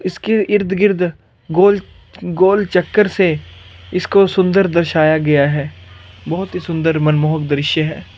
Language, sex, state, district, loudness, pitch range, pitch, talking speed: Hindi, male, Chandigarh, Chandigarh, -15 LUFS, 150-190 Hz, 170 Hz, 130 wpm